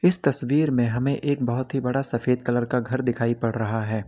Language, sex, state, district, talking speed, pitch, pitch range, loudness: Hindi, male, Uttar Pradesh, Lalitpur, 235 wpm, 125 Hz, 120-135 Hz, -23 LUFS